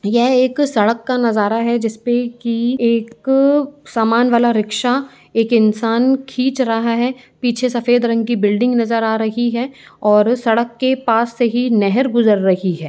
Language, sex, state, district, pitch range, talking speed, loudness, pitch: Hindi, female, Uttar Pradesh, Jyotiba Phule Nagar, 225-250 Hz, 170 wpm, -16 LUFS, 235 Hz